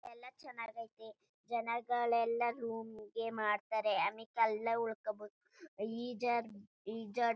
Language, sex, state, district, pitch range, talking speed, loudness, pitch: Kannada, female, Karnataka, Chamarajanagar, 215-235 Hz, 105 wpm, -38 LUFS, 230 Hz